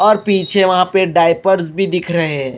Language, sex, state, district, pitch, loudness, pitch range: Hindi, male, Punjab, Kapurthala, 185 Hz, -14 LUFS, 170-195 Hz